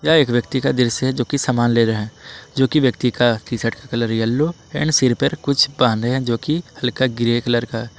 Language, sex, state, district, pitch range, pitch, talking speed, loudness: Hindi, male, Jharkhand, Palamu, 120-140 Hz, 125 Hz, 235 wpm, -18 LUFS